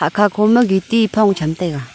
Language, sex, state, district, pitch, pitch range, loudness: Wancho, female, Arunachal Pradesh, Longding, 205 Hz, 160-215 Hz, -15 LUFS